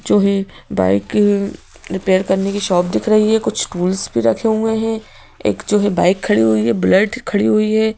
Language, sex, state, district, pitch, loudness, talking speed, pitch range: Hindi, female, Madhya Pradesh, Bhopal, 200 Hz, -16 LUFS, 205 wpm, 180-215 Hz